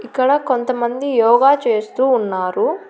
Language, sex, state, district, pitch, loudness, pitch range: Telugu, female, Andhra Pradesh, Annamaya, 245 Hz, -16 LUFS, 225-265 Hz